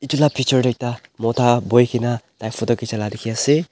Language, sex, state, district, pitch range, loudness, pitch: Nagamese, male, Nagaland, Dimapur, 115-130 Hz, -19 LUFS, 120 Hz